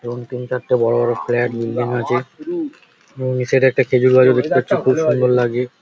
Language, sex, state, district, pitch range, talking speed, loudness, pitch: Bengali, male, West Bengal, Paschim Medinipur, 120-130 Hz, 205 wpm, -17 LUFS, 125 Hz